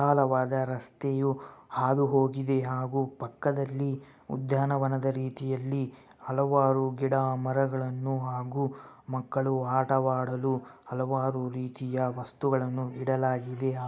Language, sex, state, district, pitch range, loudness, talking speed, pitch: Kannada, male, Karnataka, Bellary, 130-135 Hz, -29 LUFS, 85 wpm, 130 Hz